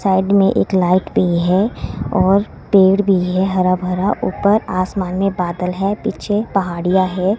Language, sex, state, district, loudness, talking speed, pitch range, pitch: Hindi, female, Himachal Pradesh, Shimla, -16 LUFS, 160 wpm, 185-200 Hz, 190 Hz